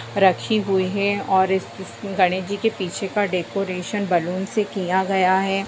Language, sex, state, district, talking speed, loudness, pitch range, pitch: Hindi, female, Bihar, Madhepura, 170 wpm, -21 LUFS, 185-200 Hz, 190 Hz